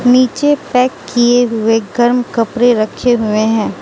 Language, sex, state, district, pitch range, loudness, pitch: Hindi, female, Manipur, Imphal West, 225-250 Hz, -13 LUFS, 240 Hz